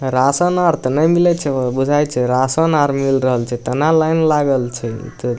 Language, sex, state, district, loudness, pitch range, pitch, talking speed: Maithili, male, Bihar, Samastipur, -16 LUFS, 125-155 Hz, 135 Hz, 210 wpm